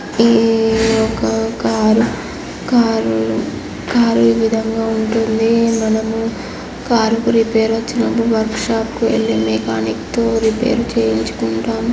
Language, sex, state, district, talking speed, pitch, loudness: Telugu, female, Andhra Pradesh, Chittoor, 80 wpm, 225 Hz, -16 LUFS